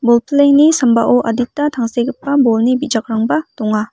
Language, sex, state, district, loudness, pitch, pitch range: Garo, female, Meghalaya, West Garo Hills, -14 LUFS, 245 Hz, 230-280 Hz